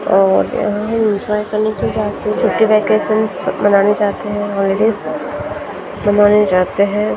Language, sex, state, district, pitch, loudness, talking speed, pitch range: Hindi, female, Maharashtra, Gondia, 205 Hz, -15 LUFS, 160 wpm, 200-215 Hz